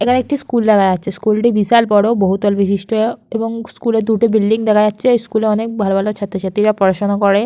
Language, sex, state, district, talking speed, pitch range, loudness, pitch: Bengali, female, West Bengal, Jhargram, 200 wpm, 200-230 Hz, -15 LUFS, 215 Hz